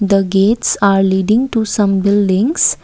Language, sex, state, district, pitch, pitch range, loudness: English, female, Assam, Kamrup Metropolitan, 200 Hz, 195-220 Hz, -13 LUFS